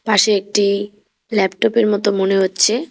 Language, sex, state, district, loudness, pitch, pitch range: Bengali, female, West Bengal, Cooch Behar, -16 LUFS, 205 Hz, 195-215 Hz